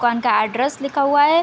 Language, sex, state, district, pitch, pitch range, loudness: Hindi, female, Uttar Pradesh, Deoria, 275 Hz, 240-290 Hz, -18 LUFS